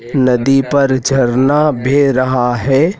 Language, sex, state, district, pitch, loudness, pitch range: Hindi, male, Madhya Pradesh, Dhar, 135 Hz, -13 LUFS, 130-140 Hz